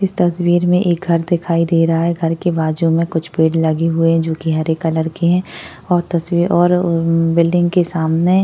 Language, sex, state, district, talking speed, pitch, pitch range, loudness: Hindi, female, Maharashtra, Chandrapur, 225 wpm, 170 Hz, 165-175 Hz, -16 LUFS